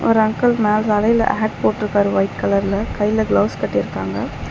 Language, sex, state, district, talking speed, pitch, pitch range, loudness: Tamil, female, Tamil Nadu, Chennai, 145 wpm, 215 Hz, 205-220 Hz, -18 LUFS